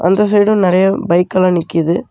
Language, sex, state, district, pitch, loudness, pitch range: Tamil, male, Tamil Nadu, Namakkal, 185 Hz, -13 LUFS, 175-195 Hz